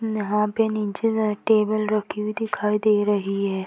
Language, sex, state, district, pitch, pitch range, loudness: Hindi, female, Uttar Pradesh, Deoria, 210 Hz, 210-215 Hz, -23 LUFS